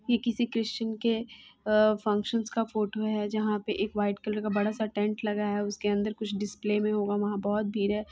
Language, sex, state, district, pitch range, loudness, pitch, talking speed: Hindi, female, Bihar, Muzaffarpur, 205-220 Hz, -29 LUFS, 210 Hz, 230 wpm